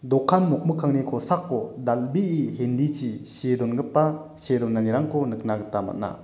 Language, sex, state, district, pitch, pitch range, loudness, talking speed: Garo, male, Meghalaya, West Garo Hills, 135 Hz, 120-155 Hz, -24 LUFS, 125 wpm